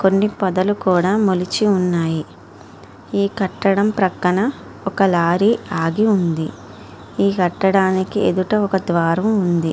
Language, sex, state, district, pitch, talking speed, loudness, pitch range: Telugu, female, Andhra Pradesh, Srikakulam, 190 Hz, 110 wpm, -18 LUFS, 170-200 Hz